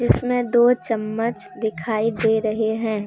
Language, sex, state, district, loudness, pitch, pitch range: Hindi, female, Jharkhand, Deoghar, -21 LUFS, 225 Hz, 220-240 Hz